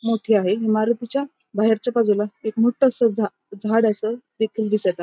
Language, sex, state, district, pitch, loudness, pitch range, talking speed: Marathi, female, Maharashtra, Pune, 220 Hz, -21 LUFS, 210-235 Hz, 180 wpm